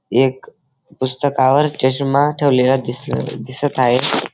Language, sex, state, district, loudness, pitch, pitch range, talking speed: Marathi, male, Maharashtra, Dhule, -16 LUFS, 130 Hz, 130-140 Hz, 95 wpm